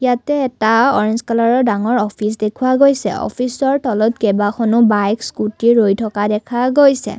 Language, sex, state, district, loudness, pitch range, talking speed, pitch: Assamese, female, Assam, Kamrup Metropolitan, -15 LUFS, 210-250 Hz, 140 wpm, 230 Hz